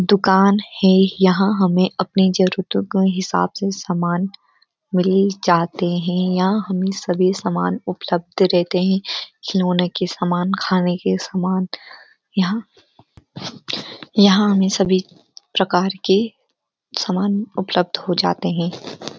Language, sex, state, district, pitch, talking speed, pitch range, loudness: Hindi, female, Uttarakhand, Uttarkashi, 185 Hz, 115 wpm, 180-195 Hz, -19 LUFS